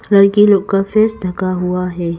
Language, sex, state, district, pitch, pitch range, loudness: Hindi, female, Arunachal Pradesh, Lower Dibang Valley, 195 Hz, 180-205 Hz, -14 LUFS